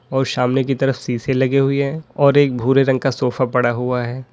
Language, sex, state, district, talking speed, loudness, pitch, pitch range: Hindi, male, Uttar Pradesh, Lalitpur, 235 wpm, -17 LUFS, 135 Hz, 125-135 Hz